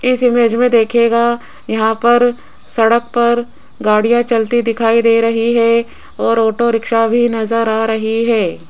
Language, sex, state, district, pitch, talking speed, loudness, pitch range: Hindi, female, Rajasthan, Jaipur, 230 Hz, 150 wpm, -14 LUFS, 225-240 Hz